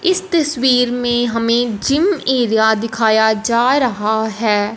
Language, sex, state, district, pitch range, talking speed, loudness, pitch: Hindi, female, Punjab, Fazilka, 220-260 Hz, 125 wpm, -15 LUFS, 235 Hz